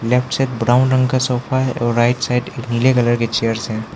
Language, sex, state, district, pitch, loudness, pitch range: Hindi, male, Arunachal Pradesh, Lower Dibang Valley, 125 Hz, -17 LUFS, 120-130 Hz